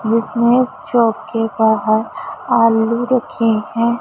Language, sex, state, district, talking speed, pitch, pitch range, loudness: Hindi, female, Punjab, Pathankot, 90 wpm, 230 Hz, 225-245 Hz, -16 LUFS